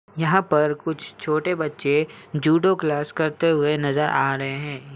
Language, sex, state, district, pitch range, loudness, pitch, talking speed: Hindi, male, Uttar Pradesh, Ghazipur, 145-160 Hz, -22 LUFS, 150 Hz, 155 wpm